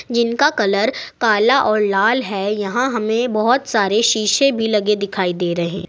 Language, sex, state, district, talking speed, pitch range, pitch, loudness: Hindi, female, Uttar Pradesh, Saharanpur, 165 wpm, 200-235 Hz, 215 Hz, -17 LUFS